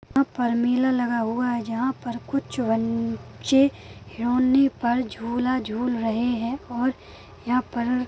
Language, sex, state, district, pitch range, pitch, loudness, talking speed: Hindi, female, Maharashtra, Aurangabad, 235-255 Hz, 245 Hz, -24 LUFS, 140 wpm